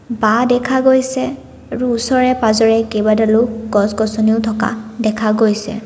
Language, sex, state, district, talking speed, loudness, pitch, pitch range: Assamese, female, Assam, Kamrup Metropolitan, 125 wpm, -15 LUFS, 225 Hz, 220-240 Hz